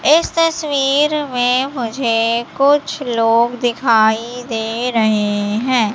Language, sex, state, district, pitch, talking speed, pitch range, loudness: Hindi, female, Madhya Pradesh, Katni, 245 Hz, 100 wpm, 225-275 Hz, -16 LUFS